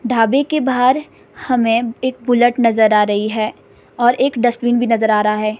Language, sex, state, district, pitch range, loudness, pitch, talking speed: Hindi, female, Himachal Pradesh, Shimla, 220-250 Hz, -15 LUFS, 240 Hz, 190 wpm